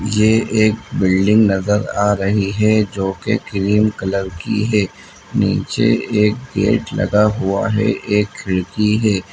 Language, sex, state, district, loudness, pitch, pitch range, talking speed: Hindi, male, Bihar, Muzaffarpur, -17 LUFS, 105 Hz, 100-110 Hz, 140 wpm